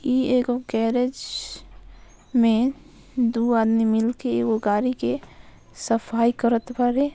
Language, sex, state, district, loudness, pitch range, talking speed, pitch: Bhojpuri, female, Bihar, Saran, -22 LUFS, 225-250 Hz, 110 wpm, 240 Hz